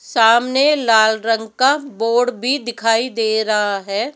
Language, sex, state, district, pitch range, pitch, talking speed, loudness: Hindi, female, Rajasthan, Jaipur, 220-255 Hz, 230 Hz, 145 wpm, -16 LUFS